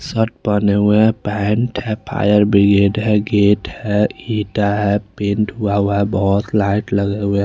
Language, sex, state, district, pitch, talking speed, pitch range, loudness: Hindi, male, Chandigarh, Chandigarh, 105 Hz, 175 wpm, 100-105 Hz, -16 LUFS